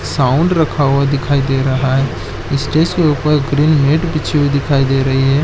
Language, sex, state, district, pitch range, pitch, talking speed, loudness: Hindi, male, Chhattisgarh, Korba, 135-150 Hz, 140 Hz, 200 wpm, -14 LUFS